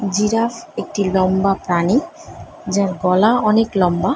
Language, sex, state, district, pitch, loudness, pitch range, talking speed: Bengali, female, West Bengal, Kolkata, 200 Hz, -17 LUFS, 185-225 Hz, 130 wpm